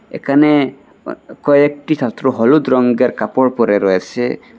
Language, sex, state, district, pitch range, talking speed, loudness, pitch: Bengali, male, Assam, Hailakandi, 120-150 Hz, 120 wpm, -14 LUFS, 130 Hz